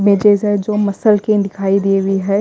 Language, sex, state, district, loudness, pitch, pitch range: Hindi, female, Haryana, Jhajjar, -15 LUFS, 200 Hz, 195-210 Hz